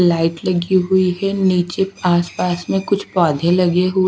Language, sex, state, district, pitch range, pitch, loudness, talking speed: Hindi, female, Haryana, Charkhi Dadri, 175-190 Hz, 180 Hz, -17 LUFS, 175 wpm